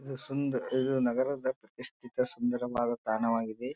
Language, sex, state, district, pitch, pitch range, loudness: Kannada, male, Karnataka, Bijapur, 125 Hz, 120-130 Hz, -32 LUFS